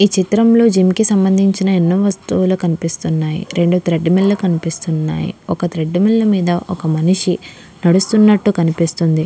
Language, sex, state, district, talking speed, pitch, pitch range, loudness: Telugu, female, Andhra Pradesh, Krishna, 140 wpm, 180 Hz, 170-195 Hz, -15 LUFS